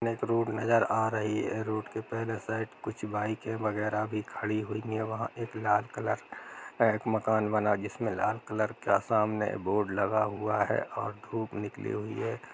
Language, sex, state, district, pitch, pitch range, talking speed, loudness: Hindi, male, Bihar, Sitamarhi, 110 Hz, 105-110 Hz, 170 wpm, -31 LUFS